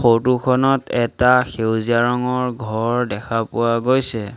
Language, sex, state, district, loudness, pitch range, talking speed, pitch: Assamese, male, Assam, Sonitpur, -18 LUFS, 115-125 Hz, 125 wpm, 120 Hz